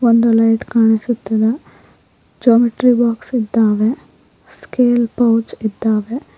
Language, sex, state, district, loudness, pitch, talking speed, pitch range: Kannada, female, Karnataka, Koppal, -15 LUFS, 230 Hz, 85 wpm, 220-240 Hz